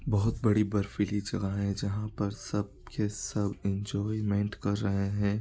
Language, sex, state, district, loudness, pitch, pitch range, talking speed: Hindi, male, Bihar, East Champaran, -31 LUFS, 105 Hz, 100-105 Hz, 145 wpm